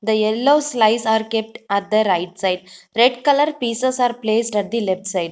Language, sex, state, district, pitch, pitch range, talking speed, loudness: English, female, Telangana, Hyderabad, 220 Hz, 195-240 Hz, 200 wpm, -19 LUFS